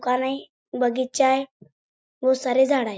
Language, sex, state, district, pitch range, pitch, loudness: Marathi, female, Maharashtra, Chandrapur, 250-265 Hz, 260 Hz, -22 LUFS